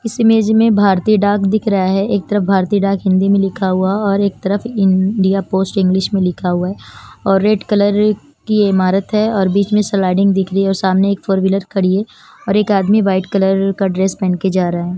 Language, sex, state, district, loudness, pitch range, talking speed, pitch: Hindi, female, Chandigarh, Chandigarh, -14 LUFS, 190-205 Hz, 230 wpm, 195 Hz